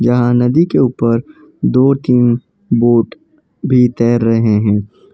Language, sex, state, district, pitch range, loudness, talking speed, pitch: Hindi, male, Gujarat, Valsad, 115-135 Hz, -13 LUFS, 130 wpm, 120 Hz